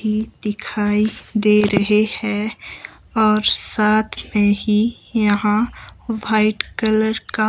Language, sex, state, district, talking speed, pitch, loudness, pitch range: Hindi, male, Himachal Pradesh, Shimla, 95 wpm, 215 Hz, -18 LUFS, 210-220 Hz